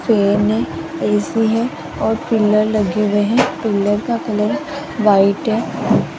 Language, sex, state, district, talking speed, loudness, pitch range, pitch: Hindi, female, Rajasthan, Jaipur, 145 wpm, -17 LUFS, 205-230 Hz, 215 Hz